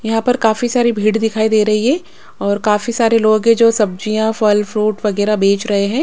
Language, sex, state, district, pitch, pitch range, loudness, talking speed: Hindi, female, Maharashtra, Mumbai Suburban, 220 Hz, 210-230 Hz, -15 LUFS, 220 wpm